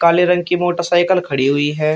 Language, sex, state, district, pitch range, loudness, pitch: Hindi, male, Uttar Pradesh, Shamli, 155-175 Hz, -16 LUFS, 170 Hz